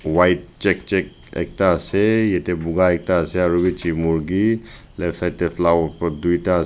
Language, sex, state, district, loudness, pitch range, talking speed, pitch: Nagamese, male, Nagaland, Dimapur, -20 LUFS, 85-90 Hz, 170 wpm, 90 Hz